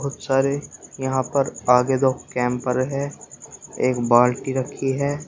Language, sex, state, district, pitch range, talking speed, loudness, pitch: Hindi, male, Uttar Pradesh, Shamli, 125-140 Hz, 135 wpm, -21 LUFS, 130 Hz